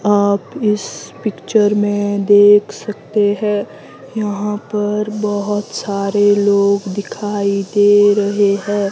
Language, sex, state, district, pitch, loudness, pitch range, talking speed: Hindi, female, Himachal Pradesh, Shimla, 205 Hz, -15 LUFS, 200-210 Hz, 105 wpm